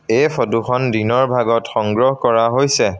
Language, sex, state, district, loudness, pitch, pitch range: Assamese, male, Assam, Sonitpur, -16 LUFS, 120 Hz, 115-130 Hz